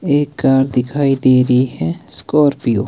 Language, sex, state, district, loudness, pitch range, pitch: Hindi, male, Himachal Pradesh, Shimla, -15 LUFS, 125-145 Hz, 135 Hz